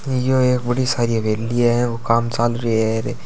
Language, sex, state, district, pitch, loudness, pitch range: Hindi, male, Rajasthan, Churu, 120 Hz, -19 LUFS, 115-125 Hz